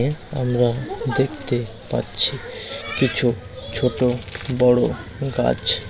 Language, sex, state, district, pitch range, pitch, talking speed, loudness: Bengali, male, West Bengal, Malda, 115-130 Hz, 125 Hz, 70 wpm, -21 LUFS